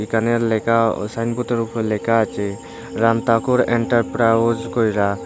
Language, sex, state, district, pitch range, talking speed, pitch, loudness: Bengali, male, Tripura, Unakoti, 110-115 Hz, 115 wpm, 115 Hz, -19 LUFS